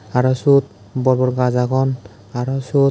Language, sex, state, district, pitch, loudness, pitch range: Chakma, male, Tripura, West Tripura, 130 Hz, -18 LUFS, 125-135 Hz